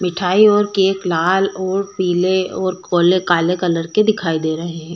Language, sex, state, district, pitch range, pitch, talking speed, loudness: Hindi, female, Uttar Pradesh, Budaun, 175-190 Hz, 185 Hz, 180 wpm, -16 LUFS